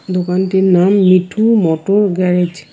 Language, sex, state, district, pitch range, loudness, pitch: Bengali, female, West Bengal, Alipurduar, 180-195 Hz, -13 LUFS, 185 Hz